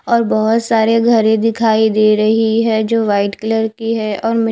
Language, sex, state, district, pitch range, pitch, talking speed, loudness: Hindi, female, Odisha, Khordha, 220-225 Hz, 220 Hz, 200 wpm, -14 LUFS